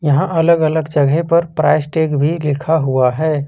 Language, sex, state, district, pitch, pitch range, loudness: Hindi, male, Jharkhand, Ranchi, 155 Hz, 145-160 Hz, -15 LUFS